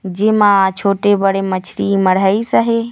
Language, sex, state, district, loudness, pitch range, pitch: Chhattisgarhi, female, Chhattisgarh, Raigarh, -14 LUFS, 195-210 Hz, 195 Hz